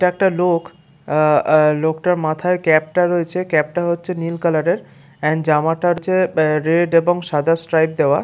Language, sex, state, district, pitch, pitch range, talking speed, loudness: Bengali, male, West Bengal, Paschim Medinipur, 165 Hz, 155-175 Hz, 165 wpm, -17 LUFS